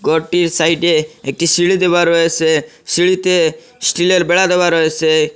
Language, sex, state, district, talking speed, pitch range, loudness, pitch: Bengali, male, Assam, Hailakandi, 125 wpm, 160-180 Hz, -14 LUFS, 170 Hz